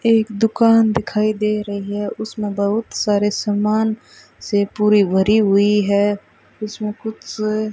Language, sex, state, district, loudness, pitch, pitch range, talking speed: Hindi, female, Rajasthan, Bikaner, -18 LUFS, 210 Hz, 205-220 Hz, 130 wpm